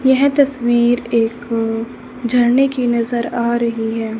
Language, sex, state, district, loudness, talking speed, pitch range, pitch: Hindi, female, Haryana, Charkhi Dadri, -17 LUFS, 130 wpm, 230-245 Hz, 240 Hz